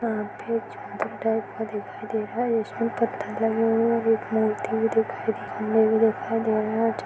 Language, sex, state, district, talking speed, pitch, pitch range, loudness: Hindi, female, Chhattisgarh, Jashpur, 220 wpm, 225 Hz, 220-230 Hz, -25 LUFS